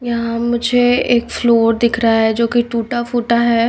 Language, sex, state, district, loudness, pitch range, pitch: Hindi, female, Bihar, Kaimur, -15 LUFS, 230-240 Hz, 235 Hz